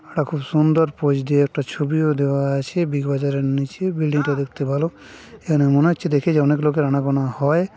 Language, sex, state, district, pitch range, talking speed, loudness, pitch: Bengali, male, West Bengal, Purulia, 140-155 Hz, 215 wpm, -20 LUFS, 145 Hz